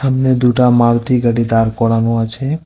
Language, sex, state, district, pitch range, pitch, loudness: Bengali, male, West Bengal, Cooch Behar, 115-130 Hz, 120 Hz, -13 LUFS